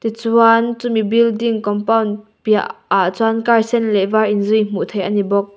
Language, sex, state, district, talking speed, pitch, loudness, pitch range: Mizo, female, Mizoram, Aizawl, 195 wpm, 220 Hz, -16 LUFS, 205-230 Hz